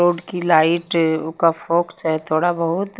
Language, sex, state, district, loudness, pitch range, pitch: Hindi, female, Himachal Pradesh, Shimla, -19 LUFS, 160-175 Hz, 170 Hz